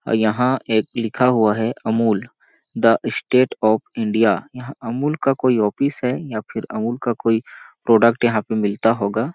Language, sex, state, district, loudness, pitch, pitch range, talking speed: Hindi, male, Chhattisgarh, Balrampur, -19 LUFS, 115 Hz, 110-125 Hz, 160 wpm